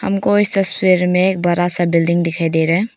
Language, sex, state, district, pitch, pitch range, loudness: Hindi, female, Arunachal Pradesh, Papum Pare, 180 Hz, 170-195 Hz, -15 LUFS